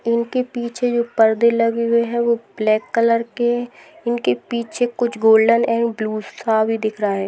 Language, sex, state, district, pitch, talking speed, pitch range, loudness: Hindi, female, Bihar, Sitamarhi, 230 Hz, 180 wpm, 220-235 Hz, -19 LUFS